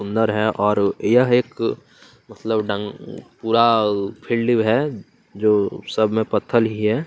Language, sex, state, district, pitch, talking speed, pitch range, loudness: Hindi, male, Chhattisgarh, Kabirdham, 110 Hz, 135 wpm, 105-115 Hz, -19 LUFS